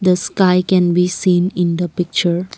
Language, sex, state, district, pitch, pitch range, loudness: English, female, Assam, Kamrup Metropolitan, 180 Hz, 175-185 Hz, -16 LUFS